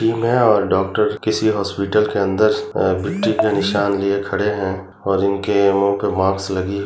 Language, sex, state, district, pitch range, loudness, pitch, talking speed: Hindi, male, Chhattisgarh, Bilaspur, 100-105 Hz, -18 LUFS, 100 Hz, 185 wpm